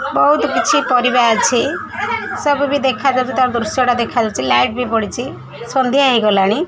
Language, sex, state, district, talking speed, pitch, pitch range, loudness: Odia, female, Odisha, Khordha, 145 wpm, 250 Hz, 235-275 Hz, -15 LUFS